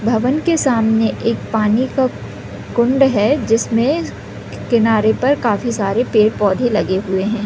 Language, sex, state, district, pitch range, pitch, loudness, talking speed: Hindi, female, Chhattisgarh, Raigarh, 215-255 Hz, 225 Hz, -16 LUFS, 135 wpm